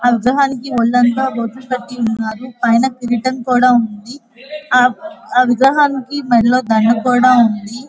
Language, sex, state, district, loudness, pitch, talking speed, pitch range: Telugu, female, Andhra Pradesh, Guntur, -14 LUFS, 250 Hz, 120 wpm, 235-260 Hz